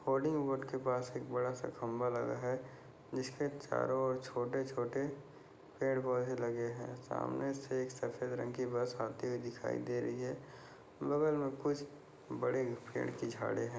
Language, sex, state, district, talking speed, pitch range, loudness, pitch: Hindi, male, Goa, North and South Goa, 165 wpm, 120-135 Hz, -38 LUFS, 130 Hz